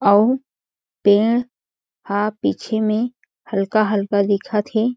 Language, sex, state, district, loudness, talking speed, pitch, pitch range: Chhattisgarhi, female, Chhattisgarh, Jashpur, -19 LUFS, 110 wpm, 215 Hz, 205-235 Hz